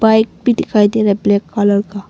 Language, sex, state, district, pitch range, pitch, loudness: Hindi, female, Arunachal Pradesh, Longding, 200-220 Hz, 205 Hz, -14 LUFS